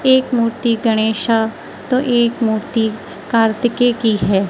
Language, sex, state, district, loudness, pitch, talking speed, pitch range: Hindi, female, Madhya Pradesh, Katni, -16 LUFS, 230 Hz, 120 wpm, 220-240 Hz